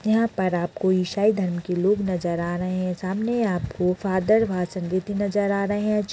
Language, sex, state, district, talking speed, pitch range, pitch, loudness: Hindi, female, Uttar Pradesh, Deoria, 225 wpm, 180-205 Hz, 185 Hz, -24 LUFS